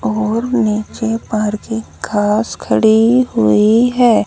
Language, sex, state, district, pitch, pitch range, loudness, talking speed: Hindi, female, Haryana, Rohtak, 220 Hz, 210-235 Hz, -14 LUFS, 100 wpm